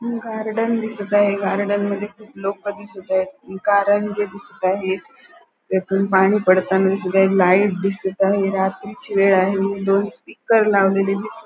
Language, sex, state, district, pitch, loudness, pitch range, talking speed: Marathi, female, Goa, North and South Goa, 195 Hz, -19 LUFS, 190-205 Hz, 145 wpm